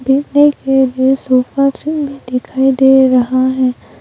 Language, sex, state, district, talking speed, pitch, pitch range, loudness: Hindi, female, Arunachal Pradesh, Longding, 90 wpm, 265 Hz, 255-275 Hz, -13 LUFS